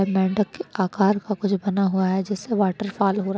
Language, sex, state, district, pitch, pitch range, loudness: Hindi, female, Uttar Pradesh, Deoria, 195 Hz, 190-205 Hz, -23 LUFS